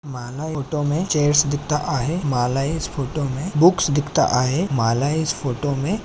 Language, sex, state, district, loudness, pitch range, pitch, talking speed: Marathi, male, Maharashtra, Sindhudurg, -21 LUFS, 135-155 Hz, 145 Hz, 180 wpm